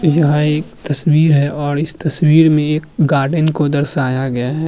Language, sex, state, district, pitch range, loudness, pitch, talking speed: Hindi, male, Uttar Pradesh, Muzaffarnagar, 145-155 Hz, -14 LUFS, 150 Hz, 180 wpm